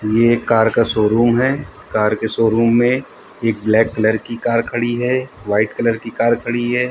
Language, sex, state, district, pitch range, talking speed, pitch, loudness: Hindi, male, Uttar Pradesh, Hamirpur, 110-120 Hz, 200 wpm, 115 Hz, -17 LUFS